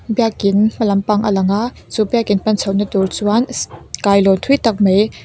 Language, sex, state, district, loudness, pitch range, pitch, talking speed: Mizo, female, Mizoram, Aizawl, -16 LUFS, 200-225 Hz, 210 Hz, 195 wpm